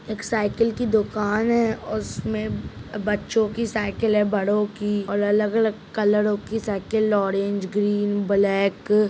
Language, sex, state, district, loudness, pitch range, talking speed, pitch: Hindi, male, Bihar, Madhepura, -23 LUFS, 200-215 Hz, 140 wpm, 210 Hz